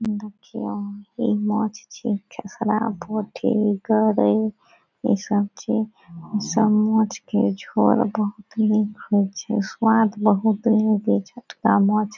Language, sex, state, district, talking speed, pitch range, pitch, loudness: Maithili, female, Bihar, Saharsa, 45 wpm, 205-220 Hz, 215 Hz, -22 LUFS